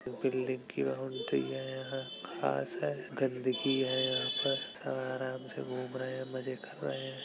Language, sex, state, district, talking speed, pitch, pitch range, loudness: Hindi, male, Uttar Pradesh, Budaun, 180 wpm, 130 Hz, 125-130 Hz, -35 LUFS